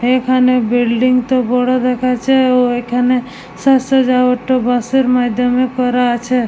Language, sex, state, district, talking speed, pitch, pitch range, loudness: Bengali, female, West Bengal, Jalpaiguri, 120 wpm, 250 Hz, 245-255 Hz, -14 LUFS